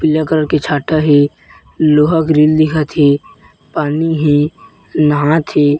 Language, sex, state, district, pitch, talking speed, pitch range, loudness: Chhattisgarhi, male, Chhattisgarh, Bilaspur, 155 Hz, 135 wpm, 145-155 Hz, -13 LUFS